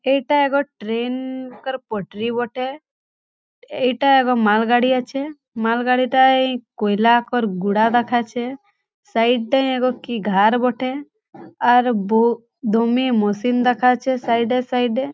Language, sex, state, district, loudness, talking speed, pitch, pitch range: Bengali, female, West Bengal, Paschim Medinipur, -19 LUFS, 125 wpm, 250 Hz, 235-260 Hz